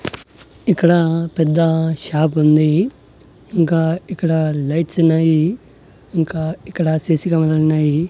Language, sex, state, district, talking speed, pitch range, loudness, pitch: Telugu, male, Andhra Pradesh, Annamaya, 105 wpm, 155-170 Hz, -17 LUFS, 160 Hz